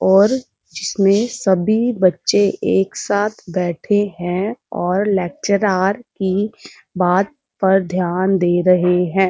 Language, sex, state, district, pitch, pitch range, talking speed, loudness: Hindi, female, Uttar Pradesh, Muzaffarnagar, 190 Hz, 180-205 Hz, 110 wpm, -17 LUFS